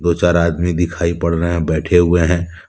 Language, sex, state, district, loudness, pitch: Hindi, male, Jharkhand, Deoghar, -16 LUFS, 85 Hz